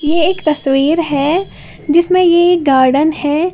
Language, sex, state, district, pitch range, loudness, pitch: Hindi, female, Uttar Pradesh, Lalitpur, 290-345 Hz, -12 LUFS, 315 Hz